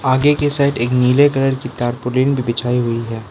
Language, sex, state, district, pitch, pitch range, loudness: Hindi, male, Arunachal Pradesh, Lower Dibang Valley, 125 Hz, 120-140 Hz, -16 LUFS